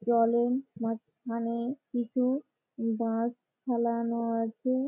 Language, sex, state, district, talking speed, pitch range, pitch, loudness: Bengali, female, West Bengal, Malda, 75 wpm, 230-250 Hz, 235 Hz, -31 LUFS